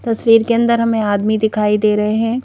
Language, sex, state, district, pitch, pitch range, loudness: Hindi, female, Madhya Pradesh, Bhopal, 220 Hz, 210-230 Hz, -15 LUFS